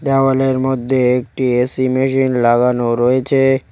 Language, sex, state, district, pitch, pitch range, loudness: Bengali, male, West Bengal, Cooch Behar, 130 Hz, 125-135 Hz, -15 LUFS